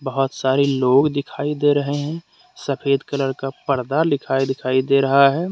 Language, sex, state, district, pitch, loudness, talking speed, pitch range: Hindi, male, Jharkhand, Deoghar, 140 Hz, -19 LUFS, 175 wpm, 135-145 Hz